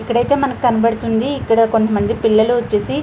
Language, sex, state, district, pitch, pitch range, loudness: Telugu, female, Andhra Pradesh, Visakhapatnam, 230 Hz, 220-245 Hz, -16 LUFS